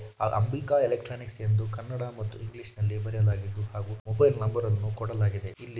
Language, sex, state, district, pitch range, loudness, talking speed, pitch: Kannada, male, Karnataka, Shimoga, 105-115 Hz, -29 LUFS, 165 wpm, 110 Hz